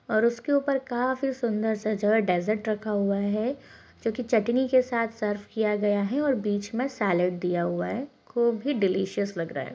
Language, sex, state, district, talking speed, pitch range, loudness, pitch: Hindi, female, Bihar, Begusarai, 210 wpm, 205-250 Hz, -26 LUFS, 220 Hz